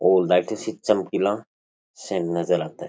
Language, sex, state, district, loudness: Rajasthani, male, Rajasthan, Churu, -23 LUFS